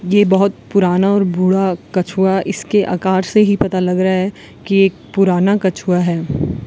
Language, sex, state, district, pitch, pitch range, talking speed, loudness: Hindi, female, Rajasthan, Bikaner, 190 Hz, 185-195 Hz, 170 wpm, -15 LUFS